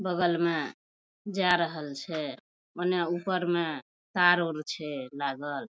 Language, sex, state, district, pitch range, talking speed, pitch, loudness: Maithili, female, Bihar, Madhepura, 150-180 Hz, 125 wpm, 170 Hz, -29 LUFS